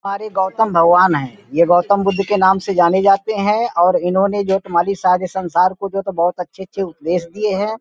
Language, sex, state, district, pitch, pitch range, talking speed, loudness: Hindi, male, Uttar Pradesh, Hamirpur, 190 Hz, 175-200 Hz, 185 wpm, -16 LUFS